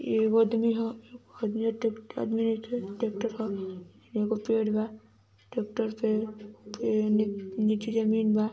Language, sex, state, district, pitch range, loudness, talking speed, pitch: Hindi, female, Uttar Pradesh, Ghazipur, 215-225 Hz, -29 LUFS, 135 wpm, 220 Hz